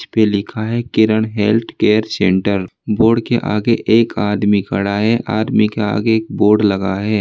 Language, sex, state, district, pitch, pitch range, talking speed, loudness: Hindi, male, Uttar Pradesh, Saharanpur, 110 Hz, 105-110 Hz, 175 wpm, -15 LUFS